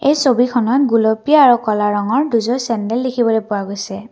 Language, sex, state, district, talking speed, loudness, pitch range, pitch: Assamese, female, Assam, Kamrup Metropolitan, 160 wpm, -15 LUFS, 215-255 Hz, 230 Hz